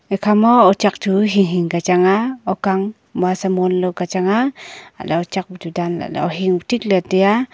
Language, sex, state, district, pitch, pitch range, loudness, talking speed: Wancho, female, Arunachal Pradesh, Longding, 190 Hz, 180-205 Hz, -17 LUFS, 215 wpm